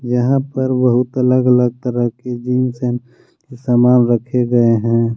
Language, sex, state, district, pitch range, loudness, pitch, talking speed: Hindi, male, Jharkhand, Deoghar, 120-125 Hz, -15 LUFS, 125 Hz, 140 wpm